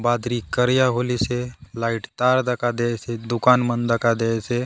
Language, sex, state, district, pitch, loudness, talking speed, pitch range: Halbi, male, Chhattisgarh, Bastar, 120 Hz, -21 LUFS, 140 wpm, 115-125 Hz